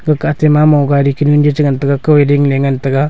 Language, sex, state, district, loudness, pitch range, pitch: Wancho, male, Arunachal Pradesh, Longding, -11 LUFS, 140-150 Hz, 145 Hz